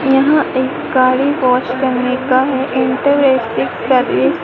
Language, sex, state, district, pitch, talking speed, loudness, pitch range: Hindi, female, Madhya Pradesh, Dhar, 260 Hz, 120 wpm, -14 LUFS, 255-275 Hz